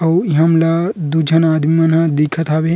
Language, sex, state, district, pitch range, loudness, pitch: Chhattisgarhi, male, Chhattisgarh, Rajnandgaon, 160-165 Hz, -14 LUFS, 165 Hz